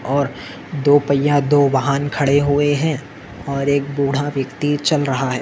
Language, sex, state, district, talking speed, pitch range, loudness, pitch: Hindi, male, Maharashtra, Solapur, 165 wpm, 140-145 Hz, -18 LUFS, 140 Hz